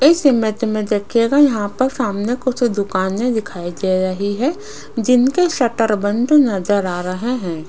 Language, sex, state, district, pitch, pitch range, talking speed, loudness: Hindi, female, Rajasthan, Jaipur, 225 Hz, 200-255 Hz, 155 wpm, -17 LUFS